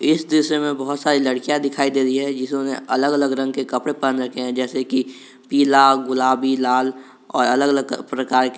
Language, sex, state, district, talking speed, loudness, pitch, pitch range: Hindi, male, Jharkhand, Garhwa, 205 wpm, -19 LUFS, 135 Hz, 130-140 Hz